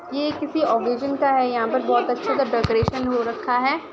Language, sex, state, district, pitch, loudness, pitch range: Hindi, female, Uttar Pradesh, Ghazipur, 260 Hz, -22 LUFS, 245-285 Hz